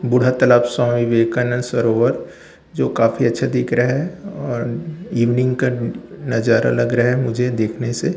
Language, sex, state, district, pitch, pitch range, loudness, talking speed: Hindi, male, Chhattisgarh, Raipur, 120 Hz, 120-125 Hz, -18 LUFS, 155 wpm